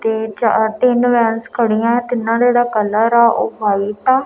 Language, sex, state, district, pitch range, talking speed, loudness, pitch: Punjabi, female, Punjab, Kapurthala, 220-240 Hz, 195 wpm, -15 LUFS, 230 Hz